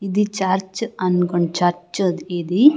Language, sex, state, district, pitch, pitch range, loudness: Telugu, female, Andhra Pradesh, Sri Satya Sai, 185 Hz, 175-200 Hz, -20 LUFS